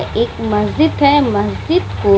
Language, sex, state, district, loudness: Hindi, female, Bihar, Vaishali, -15 LUFS